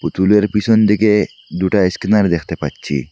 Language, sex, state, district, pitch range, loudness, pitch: Bengali, male, Assam, Hailakandi, 90-105 Hz, -15 LUFS, 105 Hz